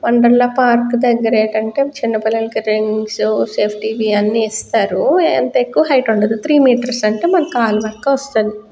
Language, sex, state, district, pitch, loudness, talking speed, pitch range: Telugu, female, Andhra Pradesh, Guntur, 225 Hz, -15 LUFS, 150 wpm, 215-250 Hz